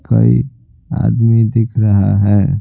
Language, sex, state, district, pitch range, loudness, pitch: Hindi, male, Bihar, Patna, 100-115 Hz, -13 LUFS, 105 Hz